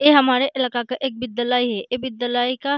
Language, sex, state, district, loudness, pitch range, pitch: Hindi, female, Chhattisgarh, Balrampur, -21 LUFS, 245-265 Hz, 250 Hz